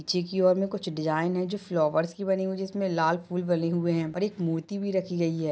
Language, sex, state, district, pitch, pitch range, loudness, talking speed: Hindi, female, Maharashtra, Nagpur, 180 Hz, 165-190 Hz, -28 LUFS, 270 wpm